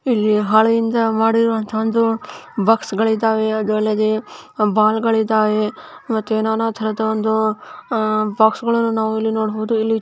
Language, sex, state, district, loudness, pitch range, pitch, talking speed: Kannada, female, Karnataka, Chamarajanagar, -18 LUFS, 215-225 Hz, 220 Hz, 115 wpm